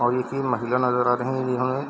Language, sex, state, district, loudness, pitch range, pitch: Hindi, male, Bihar, Darbhanga, -23 LUFS, 125-130 Hz, 125 Hz